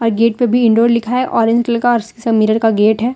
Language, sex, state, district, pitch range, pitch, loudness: Hindi, female, Jharkhand, Deoghar, 225-240 Hz, 230 Hz, -14 LUFS